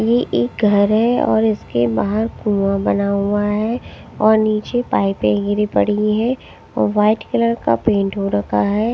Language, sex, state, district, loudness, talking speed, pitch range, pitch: Hindi, female, Odisha, Sambalpur, -17 LUFS, 170 wpm, 195-220 Hz, 210 Hz